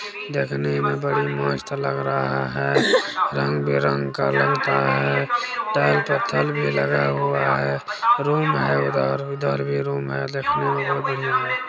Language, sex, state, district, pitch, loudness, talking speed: Maithili, male, Bihar, Supaul, 70 Hz, -21 LUFS, 165 wpm